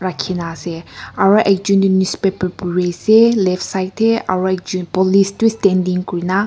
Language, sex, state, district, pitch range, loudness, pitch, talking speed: Nagamese, female, Nagaland, Kohima, 180-195 Hz, -16 LUFS, 190 Hz, 165 wpm